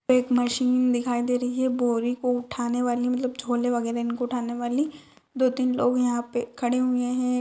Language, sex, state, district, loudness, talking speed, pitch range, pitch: Kumaoni, female, Uttarakhand, Uttarkashi, -25 LUFS, 205 wpm, 240-250 Hz, 245 Hz